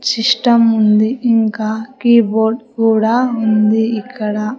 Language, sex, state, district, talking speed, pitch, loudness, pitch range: Telugu, female, Andhra Pradesh, Sri Satya Sai, 90 wpm, 225 Hz, -14 LUFS, 215-235 Hz